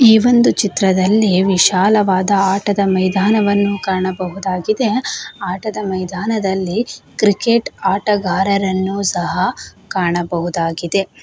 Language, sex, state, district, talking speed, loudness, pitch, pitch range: Kannada, female, Karnataka, Shimoga, 70 wpm, -16 LUFS, 195 Hz, 185-210 Hz